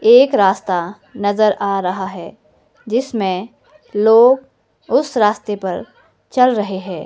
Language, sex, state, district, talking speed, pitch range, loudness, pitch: Hindi, female, Himachal Pradesh, Shimla, 120 wpm, 190-235 Hz, -16 LUFS, 205 Hz